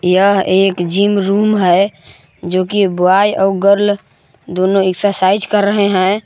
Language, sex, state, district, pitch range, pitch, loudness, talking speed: Hindi, male, Jharkhand, Palamu, 185-200 Hz, 195 Hz, -13 LUFS, 145 wpm